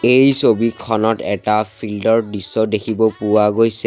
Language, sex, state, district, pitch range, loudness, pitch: Assamese, male, Assam, Sonitpur, 105-115 Hz, -16 LUFS, 110 Hz